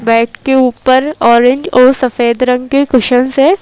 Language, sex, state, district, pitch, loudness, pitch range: Hindi, female, Madhya Pradesh, Bhopal, 255 Hz, -10 LUFS, 245-265 Hz